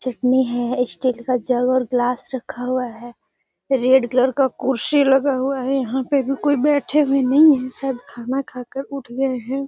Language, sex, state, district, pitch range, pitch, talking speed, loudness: Hindi, female, Bihar, Gaya, 250-275 Hz, 260 Hz, 190 wpm, -19 LUFS